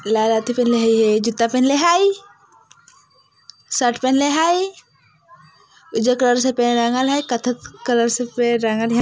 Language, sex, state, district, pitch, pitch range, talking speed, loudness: Bajjika, female, Bihar, Vaishali, 245 Hz, 235-270 Hz, 145 wpm, -18 LUFS